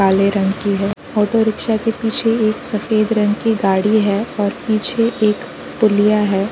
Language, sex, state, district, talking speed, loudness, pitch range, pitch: Hindi, female, Uttar Pradesh, Varanasi, 175 wpm, -17 LUFS, 200-225 Hz, 215 Hz